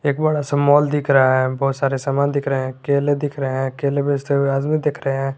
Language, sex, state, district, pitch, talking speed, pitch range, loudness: Hindi, male, Jharkhand, Garhwa, 140 Hz, 265 wpm, 135-145 Hz, -19 LUFS